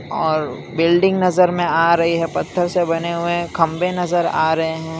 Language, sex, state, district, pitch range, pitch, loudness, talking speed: Hindi, male, Gujarat, Valsad, 160-175 Hz, 170 Hz, -18 LUFS, 190 wpm